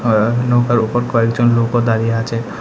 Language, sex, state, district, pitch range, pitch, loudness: Bengali, male, Tripura, West Tripura, 115-120 Hz, 115 Hz, -15 LUFS